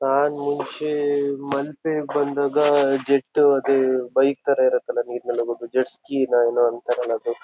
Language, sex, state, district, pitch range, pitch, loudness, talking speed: Kannada, male, Karnataka, Shimoga, 125-145 Hz, 140 Hz, -21 LUFS, 155 wpm